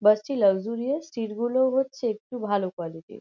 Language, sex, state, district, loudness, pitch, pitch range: Bengali, female, West Bengal, Kolkata, -26 LUFS, 225 Hz, 205-260 Hz